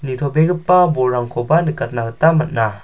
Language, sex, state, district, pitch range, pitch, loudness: Garo, male, Meghalaya, South Garo Hills, 120-165 Hz, 145 Hz, -16 LUFS